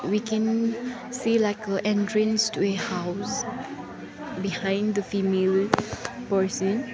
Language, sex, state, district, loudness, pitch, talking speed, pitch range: English, female, Sikkim, Gangtok, -26 LUFS, 210 Hz, 105 wpm, 195-230 Hz